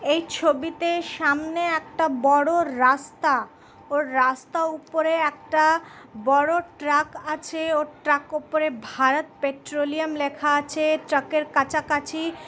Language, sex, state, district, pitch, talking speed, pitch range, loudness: Bengali, female, West Bengal, Dakshin Dinajpur, 305 Hz, 110 wpm, 290-320 Hz, -23 LUFS